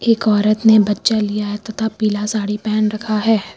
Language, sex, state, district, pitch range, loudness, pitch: Hindi, female, Uttar Pradesh, Lucknow, 210-220 Hz, -17 LUFS, 215 Hz